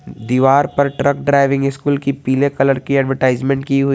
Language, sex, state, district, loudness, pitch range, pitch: Hindi, male, Jharkhand, Garhwa, -16 LUFS, 135-140 Hz, 135 Hz